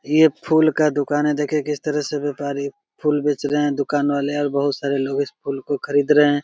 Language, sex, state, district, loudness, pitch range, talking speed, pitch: Maithili, male, Bihar, Begusarai, -20 LUFS, 140-150 Hz, 240 wpm, 145 Hz